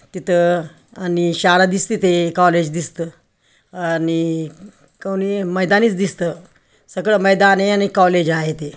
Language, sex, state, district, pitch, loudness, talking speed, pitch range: Marathi, male, Maharashtra, Aurangabad, 180 Hz, -17 LUFS, 125 wpm, 165-195 Hz